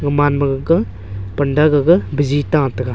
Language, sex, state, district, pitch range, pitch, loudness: Wancho, male, Arunachal Pradesh, Longding, 125-145 Hz, 145 Hz, -15 LUFS